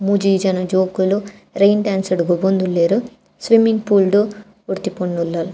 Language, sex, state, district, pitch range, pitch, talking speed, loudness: Tulu, female, Karnataka, Dakshina Kannada, 185-205 Hz, 195 Hz, 140 wpm, -17 LUFS